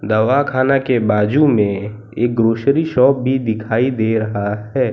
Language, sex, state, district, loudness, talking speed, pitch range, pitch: Hindi, male, Gujarat, Valsad, -16 LUFS, 160 wpm, 110-130 Hz, 115 Hz